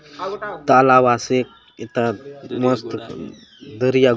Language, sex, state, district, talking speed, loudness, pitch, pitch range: Halbi, male, Chhattisgarh, Bastar, 100 wpm, -18 LUFS, 130 Hz, 120-140 Hz